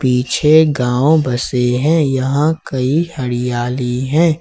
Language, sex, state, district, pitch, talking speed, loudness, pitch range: Hindi, male, Jharkhand, Ranchi, 130 Hz, 110 wpm, -15 LUFS, 125-155 Hz